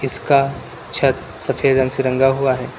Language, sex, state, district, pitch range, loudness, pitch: Hindi, male, Uttar Pradesh, Lucknow, 130-135 Hz, -18 LUFS, 135 Hz